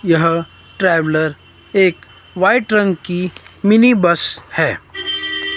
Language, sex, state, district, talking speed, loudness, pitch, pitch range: Hindi, male, Himachal Pradesh, Shimla, 95 wpm, -16 LUFS, 190 Hz, 165-235 Hz